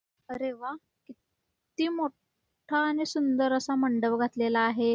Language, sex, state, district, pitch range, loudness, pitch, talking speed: Marathi, female, Karnataka, Belgaum, 235-300 Hz, -28 LUFS, 265 Hz, 110 wpm